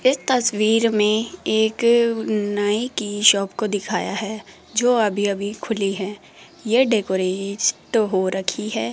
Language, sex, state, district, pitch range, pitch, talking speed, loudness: Hindi, female, Rajasthan, Jaipur, 200-230 Hz, 215 Hz, 135 wpm, -20 LUFS